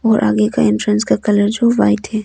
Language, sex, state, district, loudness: Hindi, female, Arunachal Pradesh, Longding, -14 LUFS